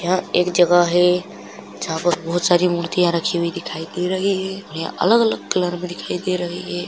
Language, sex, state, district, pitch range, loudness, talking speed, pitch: Hindi, male, Chhattisgarh, Balrampur, 175-180 Hz, -19 LUFS, 200 wpm, 175 Hz